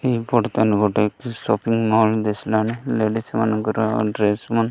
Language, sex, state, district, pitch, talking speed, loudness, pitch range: Odia, male, Odisha, Malkangiri, 110 Hz, 140 wpm, -20 LUFS, 105-115 Hz